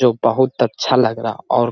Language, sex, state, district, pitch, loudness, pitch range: Hindi, male, Bihar, Jahanabad, 120 Hz, -17 LUFS, 115-130 Hz